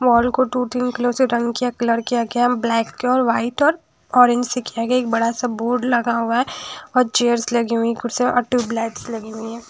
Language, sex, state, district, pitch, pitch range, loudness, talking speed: Hindi, female, Odisha, Sambalpur, 240 Hz, 230-250 Hz, -19 LUFS, 225 wpm